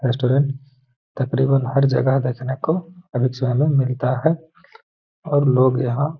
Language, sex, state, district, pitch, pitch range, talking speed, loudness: Hindi, male, Bihar, Gaya, 135 Hz, 130-145 Hz, 115 wpm, -20 LUFS